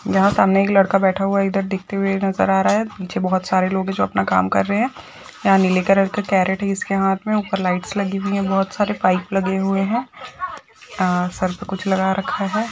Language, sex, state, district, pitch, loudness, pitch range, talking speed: Hindi, female, Maharashtra, Nagpur, 195 Hz, -19 LUFS, 185-200 Hz, 235 wpm